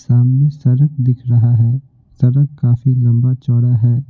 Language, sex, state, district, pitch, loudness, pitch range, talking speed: Hindi, male, Bihar, Patna, 125 Hz, -14 LUFS, 120-135 Hz, 145 wpm